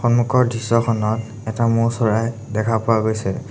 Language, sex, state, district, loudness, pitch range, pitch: Assamese, male, Assam, Sonitpur, -19 LUFS, 110-115 Hz, 115 Hz